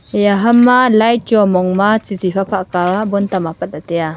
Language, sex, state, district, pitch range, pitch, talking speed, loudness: Wancho, female, Arunachal Pradesh, Longding, 185-220 Hz, 200 Hz, 230 wpm, -13 LUFS